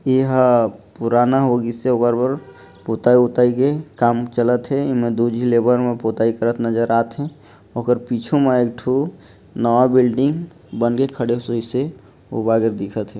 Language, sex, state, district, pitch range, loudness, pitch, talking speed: Chhattisgarhi, male, Chhattisgarh, Jashpur, 115-130 Hz, -18 LUFS, 120 Hz, 165 wpm